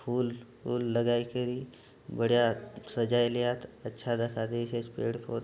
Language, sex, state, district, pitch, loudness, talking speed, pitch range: Halbi, male, Chhattisgarh, Bastar, 120 Hz, -31 LUFS, 120 wpm, 115-120 Hz